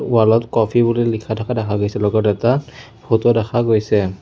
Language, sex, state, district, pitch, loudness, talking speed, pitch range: Assamese, male, Assam, Sonitpur, 115 Hz, -17 LUFS, 185 wpm, 105-120 Hz